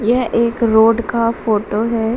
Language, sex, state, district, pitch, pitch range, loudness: Hindi, female, Bihar, Vaishali, 230 Hz, 220-235 Hz, -15 LUFS